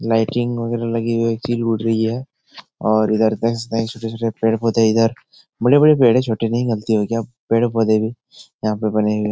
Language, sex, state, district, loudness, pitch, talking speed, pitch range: Hindi, male, Bihar, Supaul, -18 LUFS, 115 Hz, 200 wpm, 110-115 Hz